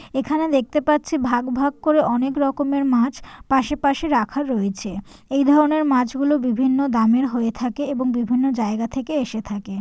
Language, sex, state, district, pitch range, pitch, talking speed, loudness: Bengali, female, West Bengal, Jalpaiguri, 240-285 Hz, 265 Hz, 165 wpm, -20 LUFS